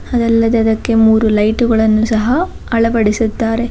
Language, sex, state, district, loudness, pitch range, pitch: Kannada, female, Karnataka, Bangalore, -13 LUFS, 220-230 Hz, 225 Hz